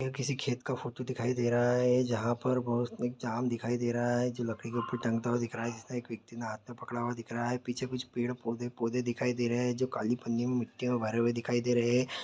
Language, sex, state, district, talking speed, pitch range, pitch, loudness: Hindi, male, Chhattisgarh, Sukma, 265 wpm, 120-125 Hz, 120 Hz, -32 LUFS